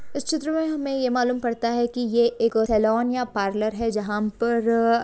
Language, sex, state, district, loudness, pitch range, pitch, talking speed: Hindi, female, Jharkhand, Jamtara, -23 LUFS, 225-250 Hz, 235 Hz, 200 wpm